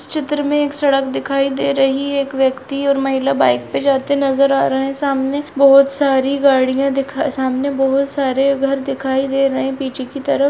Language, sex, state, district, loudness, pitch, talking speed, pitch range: Hindi, female, Rajasthan, Nagaur, -16 LUFS, 275 Hz, 210 wpm, 270-280 Hz